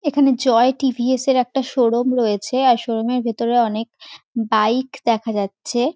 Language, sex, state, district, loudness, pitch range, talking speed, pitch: Bengali, female, West Bengal, North 24 Parganas, -18 LUFS, 230-260 Hz, 150 wpm, 240 Hz